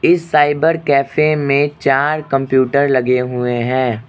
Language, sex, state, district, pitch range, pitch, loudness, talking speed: Hindi, male, Arunachal Pradesh, Lower Dibang Valley, 130-150 Hz, 140 Hz, -15 LUFS, 130 wpm